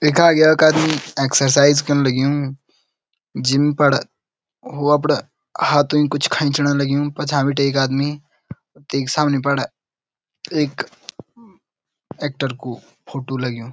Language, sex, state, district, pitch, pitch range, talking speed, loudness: Garhwali, male, Uttarakhand, Uttarkashi, 145 Hz, 135-150 Hz, 115 wpm, -18 LUFS